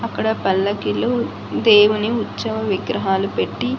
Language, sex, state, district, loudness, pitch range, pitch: Telugu, female, Andhra Pradesh, Annamaya, -19 LUFS, 200-230 Hz, 215 Hz